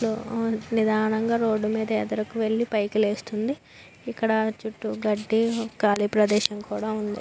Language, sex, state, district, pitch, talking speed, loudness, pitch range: Telugu, female, Andhra Pradesh, Anantapur, 220 Hz, 135 wpm, -25 LUFS, 210-225 Hz